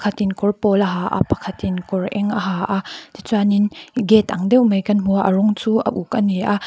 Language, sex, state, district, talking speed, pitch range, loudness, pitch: Mizo, female, Mizoram, Aizawl, 270 wpm, 195-210 Hz, -18 LUFS, 205 Hz